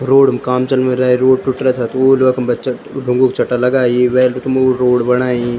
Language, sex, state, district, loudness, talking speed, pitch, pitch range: Garhwali, male, Uttarakhand, Tehri Garhwal, -14 LUFS, 235 wpm, 130 Hz, 125-130 Hz